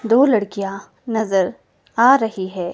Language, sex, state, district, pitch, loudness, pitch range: Hindi, female, Himachal Pradesh, Shimla, 210 Hz, -18 LUFS, 195-230 Hz